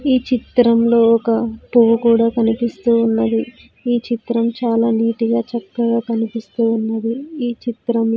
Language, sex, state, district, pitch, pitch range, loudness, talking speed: Telugu, female, Andhra Pradesh, Sri Satya Sai, 230 Hz, 230-235 Hz, -17 LUFS, 125 wpm